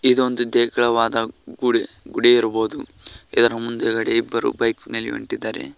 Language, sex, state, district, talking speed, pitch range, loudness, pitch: Kannada, male, Karnataka, Koppal, 105 wpm, 115-125 Hz, -20 LUFS, 120 Hz